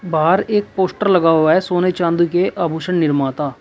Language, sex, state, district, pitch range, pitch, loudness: Hindi, male, Uttar Pradesh, Shamli, 160-185 Hz, 175 Hz, -16 LUFS